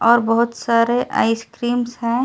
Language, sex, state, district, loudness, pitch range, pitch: Hindi, female, Delhi, New Delhi, -18 LUFS, 230-240 Hz, 235 Hz